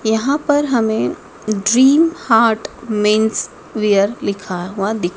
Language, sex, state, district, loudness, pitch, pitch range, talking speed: Hindi, female, Madhya Pradesh, Dhar, -16 LUFS, 220 Hz, 210-245 Hz, 115 wpm